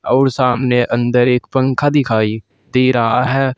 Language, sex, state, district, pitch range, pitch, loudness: Hindi, male, Uttar Pradesh, Saharanpur, 120-130 Hz, 125 Hz, -15 LUFS